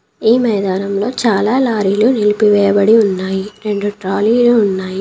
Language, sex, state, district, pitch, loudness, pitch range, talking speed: Telugu, female, Telangana, Komaram Bheem, 210 Hz, -14 LUFS, 200-225 Hz, 105 wpm